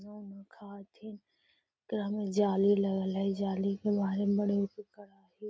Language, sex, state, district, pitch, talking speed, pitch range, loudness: Magahi, female, Bihar, Gaya, 200 Hz, 130 wpm, 195-205 Hz, -31 LUFS